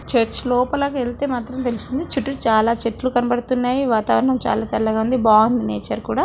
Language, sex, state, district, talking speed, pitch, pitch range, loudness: Telugu, female, Andhra Pradesh, Krishna, 145 wpm, 245 Hz, 230-260 Hz, -19 LUFS